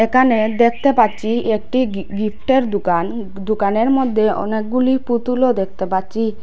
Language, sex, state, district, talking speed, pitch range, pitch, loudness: Bengali, female, Assam, Hailakandi, 120 wpm, 205-245 Hz, 220 Hz, -17 LUFS